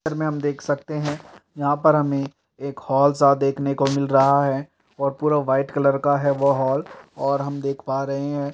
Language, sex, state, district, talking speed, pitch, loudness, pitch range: Hindi, male, Uttar Pradesh, Etah, 230 wpm, 140 Hz, -21 LUFS, 140-145 Hz